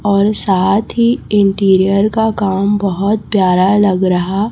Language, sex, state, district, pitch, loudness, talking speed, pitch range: Hindi, female, Chhattisgarh, Raipur, 200 Hz, -13 LUFS, 130 wpm, 190-210 Hz